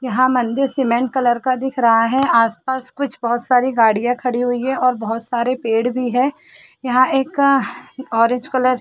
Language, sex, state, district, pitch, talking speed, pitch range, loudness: Hindi, female, Chhattisgarh, Bilaspur, 250 Hz, 190 wpm, 240-260 Hz, -17 LUFS